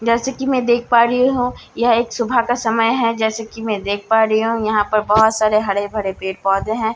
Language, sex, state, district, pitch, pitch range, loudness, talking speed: Hindi, female, Bihar, Katihar, 225 Hz, 215-235 Hz, -17 LUFS, 240 wpm